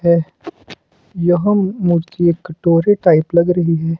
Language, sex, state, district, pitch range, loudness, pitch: Hindi, male, Himachal Pradesh, Shimla, 165-180 Hz, -15 LUFS, 170 Hz